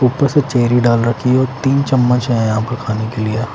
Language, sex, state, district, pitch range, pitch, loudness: Hindi, male, Chandigarh, Chandigarh, 115-130 Hz, 120 Hz, -15 LUFS